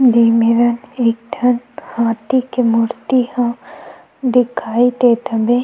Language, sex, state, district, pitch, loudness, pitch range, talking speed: Chhattisgarhi, female, Chhattisgarh, Sukma, 240 Hz, -16 LUFS, 235-250 Hz, 115 wpm